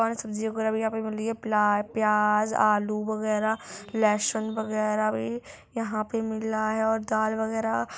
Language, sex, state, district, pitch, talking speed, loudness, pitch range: Hindi, female, Chhattisgarh, Korba, 220 Hz, 175 wpm, -27 LUFS, 210-220 Hz